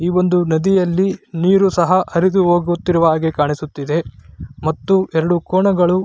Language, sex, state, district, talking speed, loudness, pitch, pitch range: Kannada, male, Karnataka, Raichur, 120 wpm, -16 LUFS, 175 Hz, 160-185 Hz